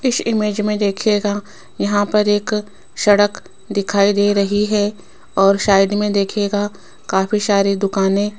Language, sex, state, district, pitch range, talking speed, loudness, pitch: Hindi, female, Rajasthan, Jaipur, 200-210 Hz, 145 wpm, -17 LUFS, 205 Hz